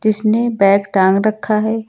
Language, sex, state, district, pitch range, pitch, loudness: Hindi, female, Uttar Pradesh, Lucknow, 200-220 Hz, 215 Hz, -14 LUFS